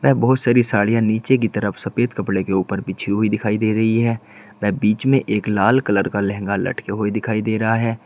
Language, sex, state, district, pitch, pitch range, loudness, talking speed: Hindi, male, Uttar Pradesh, Saharanpur, 110 Hz, 100-115 Hz, -19 LUFS, 230 wpm